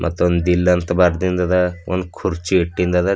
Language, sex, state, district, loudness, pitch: Kannada, male, Karnataka, Bidar, -18 LUFS, 90 Hz